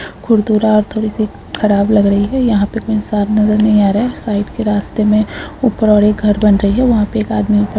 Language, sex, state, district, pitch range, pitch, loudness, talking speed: Hindi, female, Uttar Pradesh, Ghazipur, 205-220 Hz, 210 Hz, -13 LUFS, 240 wpm